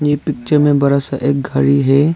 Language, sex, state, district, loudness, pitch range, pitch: Hindi, male, Arunachal Pradesh, Lower Dibang Valley, -14 LUFS, 140-145 Hz, 140 Hz